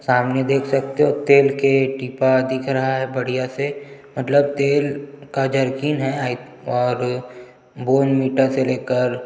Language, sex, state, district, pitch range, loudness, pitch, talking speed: Hindi, male, Chhattisgarh, Jashpur, 130-140 Hz, -19 LUFS, 135 Hz, 145 wpm